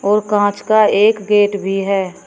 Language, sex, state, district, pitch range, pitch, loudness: Hindi, female, Uttar Pradesh, Shamli, 200-210 Hz, 205 Hz, -14 LUFS